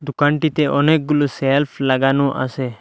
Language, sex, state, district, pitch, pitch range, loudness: Bengali, male, Assam, Hailakandi, 140 Hz, 135-150 Hz, -17 LUFS